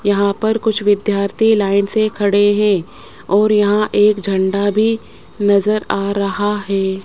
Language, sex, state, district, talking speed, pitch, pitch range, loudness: Hindi, male, Rajasthan, Jaipur, 145 wpm, 205 Hz, 200-210 Hz, -15 LUFS